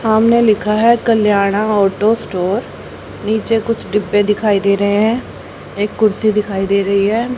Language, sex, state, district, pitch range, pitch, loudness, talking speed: Hindi, female, Haryana, Charkhi Dadri, 200-220 Hz, 210 Hz, -14 LUFS, 155 wpm